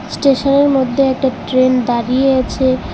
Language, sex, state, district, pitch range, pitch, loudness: Bengali, female, West Bengal, Alipurduar, 255-275 Hz, 260 Hz, -14 LUFS